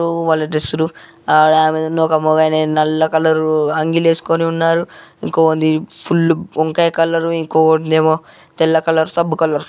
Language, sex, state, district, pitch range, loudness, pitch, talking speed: Telugu, male, Andhra Pradesh, Chittoor, 155-165 Hz, -15 LUFS, 160 Hz, 140 wpm